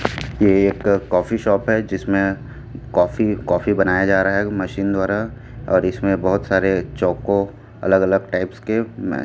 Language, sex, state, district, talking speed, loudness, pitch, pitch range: Hindi, male, Chhattisgarh, Raipur, 155 wpm, -19 LUFS, 100 Hz, 95-110 Hz